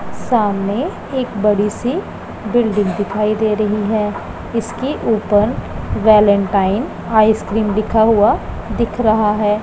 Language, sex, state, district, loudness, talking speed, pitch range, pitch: Hindi, female, Punjab, Pathankot, -16 LUFS, 110 wpm, 210-225 Hz, 215 Hz